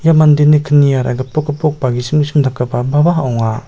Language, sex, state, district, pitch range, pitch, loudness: Garo, male, Meghalaya, South Garo Hills, 125-150 Hz, 145 Hz, -13 LUFS